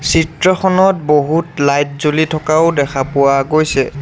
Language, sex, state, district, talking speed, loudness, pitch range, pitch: Assamese, male, Assam, Sonitpur, 120 wpm, -13 LUFS, 140-165 Hz, 155 Hz